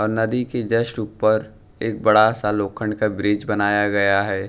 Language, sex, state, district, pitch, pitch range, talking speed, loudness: Hindi, male, Punjab, Pathankot, 105 Hz, 105-110 Hz, 175 wpm, -20 LUFS